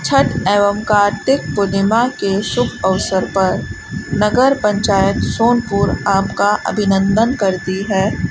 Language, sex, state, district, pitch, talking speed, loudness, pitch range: Hindi, female, Rajasthan, Bikaner, 200 Hz, 110 wpm, -15 LUFS, 195-215 Hz